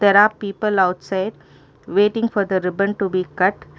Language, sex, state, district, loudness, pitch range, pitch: English, female, Karnataka, Bangalore, -19 LUFS, 185-205 Hz, 195 Hz